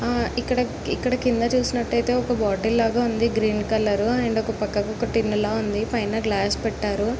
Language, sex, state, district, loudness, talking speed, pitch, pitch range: Telugu, female, Andhra Pradesh, Guntur, -23 LUFS, 175 wpm, 225 Hz, 215-240 Hz